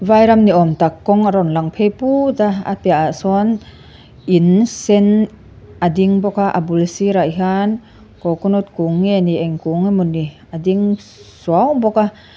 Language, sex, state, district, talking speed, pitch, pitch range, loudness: Mizo, female, Mizoram, Aizawl, 175 wpm, 190 Hz, 170-205 Hz, -15 LUFS